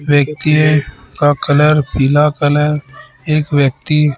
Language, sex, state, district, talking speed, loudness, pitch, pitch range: Hindi, male, Chhattisgarh, Raipur, 115 wpm, -13 LUFS, 150 Hz, 145-150 Hz